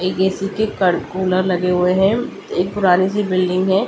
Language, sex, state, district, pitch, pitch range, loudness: Hindi, female, Delhi, New Delhi, 185 Hz, 180-195 Hz, -18 LUFS